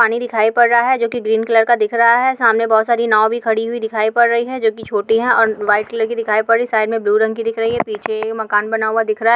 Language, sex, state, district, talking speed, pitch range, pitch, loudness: Hindi, female, Goa, North and South Goa, 315 wpm, 220-235 Hz, 225 Hz, -15 LUFS